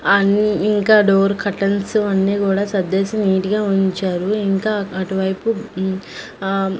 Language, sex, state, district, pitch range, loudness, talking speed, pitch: Telugu, female, Andhra Pradesh, Manyam, 190-210 Hz, -18 LUFS, 130 wpm, 195 Hz